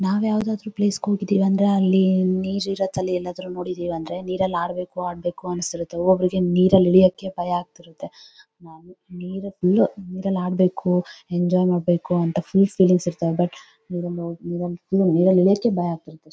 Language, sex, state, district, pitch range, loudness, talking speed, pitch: Kannada, female, Karnataka, Bellary, 175-190 Hz, -21 LUFS, 125 wpm, 180 Hz